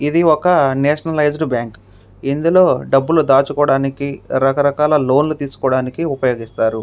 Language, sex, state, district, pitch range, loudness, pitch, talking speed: Telugu, male, Andhra Pradesh, Krishna, 130-150 Hz, -15 LUFS, 140 Hz, 45 wpm